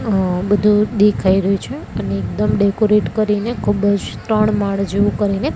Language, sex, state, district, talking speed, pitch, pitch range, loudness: Gujarati, female, Gujarat, Gandhinagar, 160 wpm, 205 Hz, 195-210 Hz, -17 LUFS